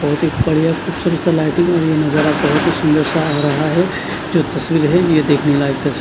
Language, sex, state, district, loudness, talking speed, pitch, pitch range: Hindi, male, Punjab, Kapurthala, -15 LUFS, 180 wpm, 155 Hz, 150-165 Hz